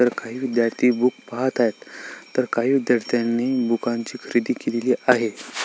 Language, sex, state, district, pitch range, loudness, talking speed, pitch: Marathi, male, Maharashtra, Sindhudurg, 115-125 Hz, -22 LUFS, 140 wpm, 120 Hz